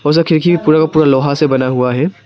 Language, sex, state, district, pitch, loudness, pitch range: Hindi, male, Arunachal Pradesh, Papum Pare, 155 Hz, -12 LUFS, 135-160 Hz